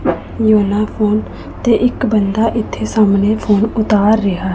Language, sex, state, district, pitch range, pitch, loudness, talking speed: Punjabi, female, Punjab, Pathankot, 205-220 Hz, 215 Hz, -14 LUFS, 130 wpm